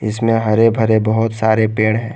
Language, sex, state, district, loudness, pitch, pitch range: Hindi, male, Jharkhand, Garhwa, -15 LUFS, 110 Hz, 110-115 Hz